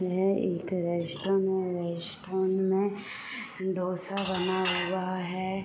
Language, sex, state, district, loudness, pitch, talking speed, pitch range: Hindi, female, Jharkhand, Sahebganj, -30 LUFS, 185 Hz, 105 wpm, 180-195 Hz